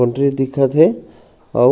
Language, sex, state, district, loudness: Chhattisgarhi, male, Chhattisgarh, Raigarh, -16 LUFS